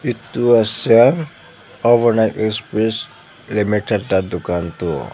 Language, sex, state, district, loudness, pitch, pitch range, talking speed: Nagamese, male, Nagaland, Dimapur, -17 LUFS, 110 Hz, 105-120 Hz, 95 wpm